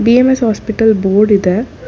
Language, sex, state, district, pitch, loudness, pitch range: Kannada, female, Karnataka, Bangalore, 220 Hz, -12 LUFS, 205-230 Hz